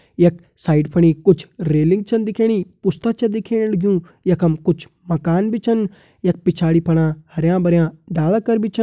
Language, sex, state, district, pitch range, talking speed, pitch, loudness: Hindi, male, Uttarakhand, Uttarkashi, 165-215 Hz, 175 wpm, 180 Hz, -18 LUFS